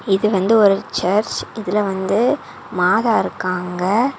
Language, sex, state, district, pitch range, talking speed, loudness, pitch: Tamil, female, Tamil Nadu, Kanyakumari, 190-220 Hz, 115 wpm, -18 LUFS, 200 Hz